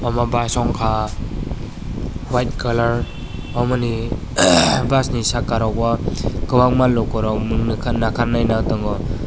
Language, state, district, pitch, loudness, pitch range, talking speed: Kokborok, Tripura, West Tripura, 115 Hz, -19 LUFS, 110-120 Hz, 95 wpm